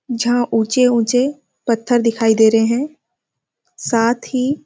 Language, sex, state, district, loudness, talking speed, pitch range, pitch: Hindi, female, Chhattisgarh, Sarguja, -16 LUFS, 140 wpm, 230-255 Hz, 240 Hz